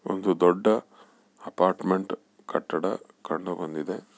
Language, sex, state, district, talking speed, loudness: Kannada, male, Karnataka, Bellary, 85 wpm, -27 LUFS